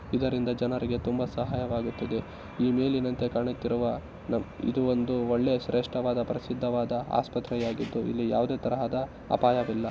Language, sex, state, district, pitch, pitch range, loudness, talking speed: Kannada, male, Karnataka, Shimoga, 120 Hz, 120-125 Hz, -29 LUFS, 115 wpm